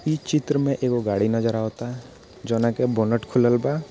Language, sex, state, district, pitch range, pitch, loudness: Bhojpuri, male, Bihar, Gopalganj, 115-135 Hz, 120 Hz, -23 LUFS